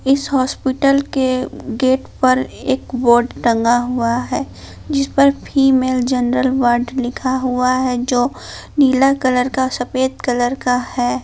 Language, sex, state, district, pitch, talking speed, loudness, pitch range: Hindi, female, Jharkhand, Palamu, 255 Hz, 140 wpm, -16 LUFS, 245-265 Hz